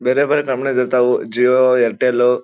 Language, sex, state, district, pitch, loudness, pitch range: Kannada, male, Karnataka, Dharwad, 125 Hz, -15 LUFS, 125-130 Hz